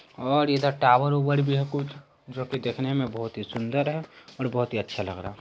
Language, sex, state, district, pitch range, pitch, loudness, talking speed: Hindi, male, Bihar, Saharsa, 120-140 Hz, 130 Hz, -26 LUFS, 245 wpm